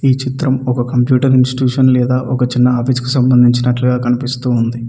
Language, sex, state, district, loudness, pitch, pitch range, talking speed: Telugu, male, Telangana, Mahabubabad, -13 LUFS, 125 Hz, 125-130 Hz, 160 wpm